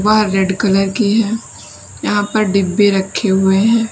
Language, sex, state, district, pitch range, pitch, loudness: Hindi, female, Uttar Pradesh, Lalitpur, 190-215 Hz, 200 Hz, -14 LUFS